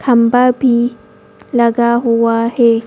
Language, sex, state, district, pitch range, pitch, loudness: Hindi, female, Madhya Pradesh, Bhopal, 230-245 Hz, 235 Hz, -13 LUFS